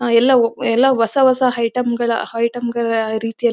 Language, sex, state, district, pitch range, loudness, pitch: Kannada, female, Karnataka, Bellary, 230-250 Hz, -16 LUFS, 235 Hz